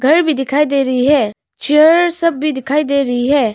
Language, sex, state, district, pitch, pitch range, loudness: Hindi, female, Arunachal Pradesh, Longding, 285 Hz, 265-305 Hz, -14 LUFS